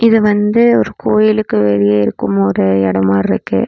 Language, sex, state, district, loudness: Tamil, female, Tamil Nadu, Namakkal, -13 LUFS